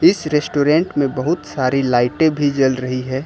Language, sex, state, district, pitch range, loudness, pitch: Hindi, male, Uttar Pradesh, Lucknow, 130-155 Hz, -17 LUFS, 140 Hz